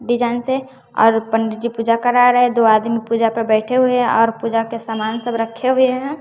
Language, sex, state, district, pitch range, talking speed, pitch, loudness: Hindi, female, Bihar, West Champaran, 225-245 Hz, 220 wpm, 230 Hz, -16 LUFS